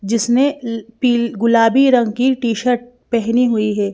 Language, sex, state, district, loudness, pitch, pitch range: Hindi, female, Madhya Pradesh, Bhopal, -16 LUFS, 235 Hz, 225-245 Hz